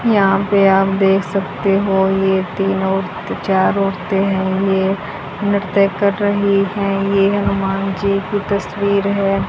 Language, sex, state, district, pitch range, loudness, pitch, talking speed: Hindi, female, Haryana, Jhajjar, 195-200 Hz, -16 LUFS, 195 Hz, 140 wpm